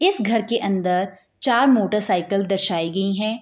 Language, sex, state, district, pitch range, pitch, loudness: Hindi, female, Bihar, Bhagalpur, 190-230 Hz, 200 Hz, -20 LUFS